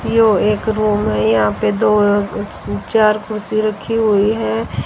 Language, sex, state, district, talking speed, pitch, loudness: Hindi, female, Haryana, Rohtak, 175 wpm, 210 Hz, -16 LUFS